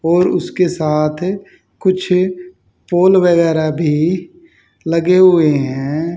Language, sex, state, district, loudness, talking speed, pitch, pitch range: Hindi, male, Haryana, Jhajjar, -14 LUFS, 95 wpm, 170 Hz, 155-185 Hz